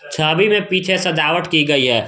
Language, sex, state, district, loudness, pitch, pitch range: Hindi, male, Jharkhand, Garhwa, -15 LUFS, 165 Hz, 145-185 Hz